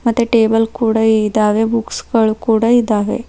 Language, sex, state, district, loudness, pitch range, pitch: Kannada, female, Karnataka, Bidar, -14 LUFS, 220-235 Hz, 225 Hz